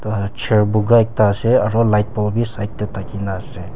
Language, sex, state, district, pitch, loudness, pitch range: Nagamese, male, Nagaland, Kohima, 105 Hz, -18 LUFS, 100-115 Hz